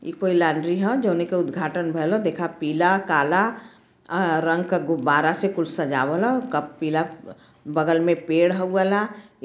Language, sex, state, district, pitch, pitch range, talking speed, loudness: Bhojpuri, female, Uttar Pradesh, Varanasi, 170 Hz, 160-190 Hz, 185 wpm, -22 LUFS